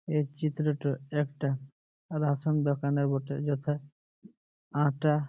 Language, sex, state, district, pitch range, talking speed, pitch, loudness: Bengali, male, West Bengal, Jalpaiguri, 140-150 Hz, 100 wpm, 145 Hz, -31 LUFS